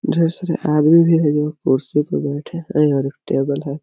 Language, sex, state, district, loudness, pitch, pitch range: Hindi, male, Chhattisgarh, Korba, -18 LUFS, 150 Hz, 140-165 Hz